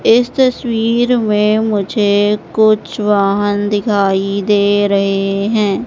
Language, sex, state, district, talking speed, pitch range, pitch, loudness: Hindi, female, Madhya Pradesh, Katni, 100 wpm, 200-220 Hz, 205 Hz, -14 LUFS